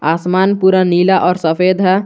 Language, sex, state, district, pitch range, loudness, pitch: Hindi, male, Jharkhand, Garhwa, 175-190 Hz, -12 LUFS, 185 Hz